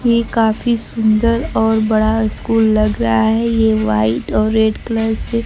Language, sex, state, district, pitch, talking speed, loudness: Hindi, female, Bihar, Kaimur, 220 Hz, 175 wpm, -15 LUFS